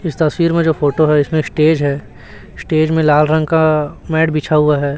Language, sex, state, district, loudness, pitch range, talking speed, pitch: Hindi, male, Chhattisgarh, Raipur, -14 LUFS, 150-160 Hz, 215 wpm, 155 Hz